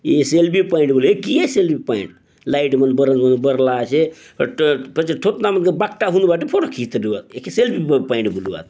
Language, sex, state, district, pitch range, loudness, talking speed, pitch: Halbi, male, Chhattisgarh, Bastar, 135-185 Hz, -17 LUFS, 140 wpm, 155 Hz